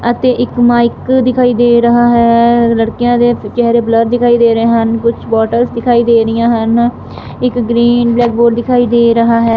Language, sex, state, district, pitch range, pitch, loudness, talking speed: Punjabi, female, Punjab, Fazilka, 230-240 Hz, 235 Hz, -10 LUFS, 180 wpm